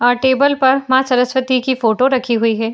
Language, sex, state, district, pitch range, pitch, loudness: Hindi, female, Uttar Pradesh, Etah, 240-260 Hz, 260 Hz, -15 LUFS